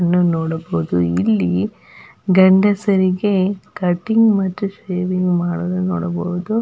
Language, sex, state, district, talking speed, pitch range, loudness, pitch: Kannada, female, Karnataka, Belgaum, 80 wpm, 175-195 Hz, -17 LUFS, 180 Hz